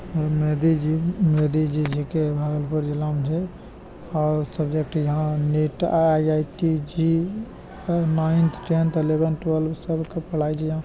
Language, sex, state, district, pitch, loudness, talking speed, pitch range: Maithili, male, Bihar, Bhagalpur, 155 Hz, -23 LUFS, 150 wpm, 150-165 Hz